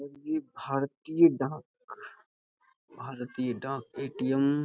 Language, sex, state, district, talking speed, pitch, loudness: Hindi, male, Uttar Pradesh, Budaun, 90 wpm, 140 Hz, -30 LUFS